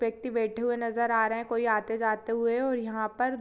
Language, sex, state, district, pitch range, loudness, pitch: Hindi, female, Jharkhand, Sahebganj, 225-240 Hz, -29 LUFS, 230 Hz